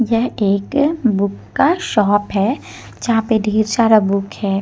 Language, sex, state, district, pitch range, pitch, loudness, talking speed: Hindi, female, Jharkhand, Deoghar, 200-235 Hz, 215 Hz, -16 LUFS, 155 wpm